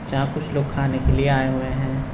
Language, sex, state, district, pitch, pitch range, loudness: Hindi, male, Uttar Pradesh, Deoria, 135 Hz, 130-140 Hz, -22 LUFS